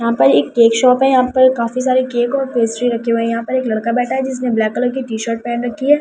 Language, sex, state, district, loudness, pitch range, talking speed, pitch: Hindi, female, Delhi, New Delhi, -15 LUFS, 230-255 Hz, 300 wpm, 240 Hz